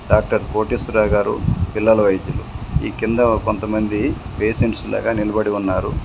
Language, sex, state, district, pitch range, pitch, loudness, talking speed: Telugu, male, Telangana, Komaram Bheem, 105-110 Hz, 110 Hz, -19 LUFS, 120 wpm